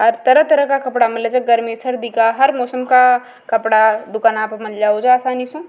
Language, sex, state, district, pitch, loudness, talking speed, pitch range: Rajasthani, female, Rajasthan, Nagaur, 245 Hz, -15 LUFS, 170 wpm, 225-255 Hz